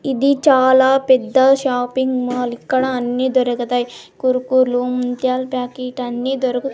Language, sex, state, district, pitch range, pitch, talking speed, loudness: Telugu, female, Andhra Pradesh, Sri Satya Sai, 245-260 Hz, 255 Hz, 115 wpm, -17 LUFS